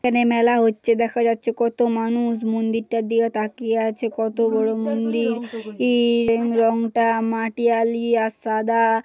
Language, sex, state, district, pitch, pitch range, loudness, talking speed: Bengali, female, West Bengal, Jhargram, 230 Hz, 225-235 Hz, -20 LUFS, 125 wpm